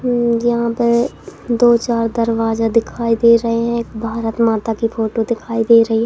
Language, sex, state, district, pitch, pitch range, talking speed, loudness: Hindi, female, Madhya Pradesh, Katni, 230 Hz, 225-235 Hz, 190 wpm, -16 LUFS